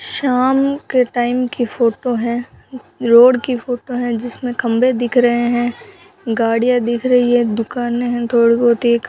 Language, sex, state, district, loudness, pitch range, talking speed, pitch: Hindi, female, Rajasthan, Bikaner, -16 LUFS, 235-250 Hz, 165 wpm, 245 Hz